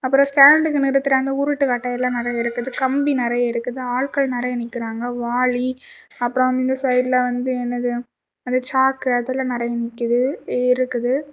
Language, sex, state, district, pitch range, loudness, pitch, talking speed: Tamil, female, Tamil Nadu, Kanyakumari, 245-265 Hz, -20 LUFS, 250 Hz, 140 wpm